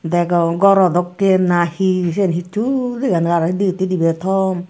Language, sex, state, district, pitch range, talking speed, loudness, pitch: Chakma, female, Tripura, Dhalai, 175-195 Hz, 190 wpm, -16 LUFS, 185 Hz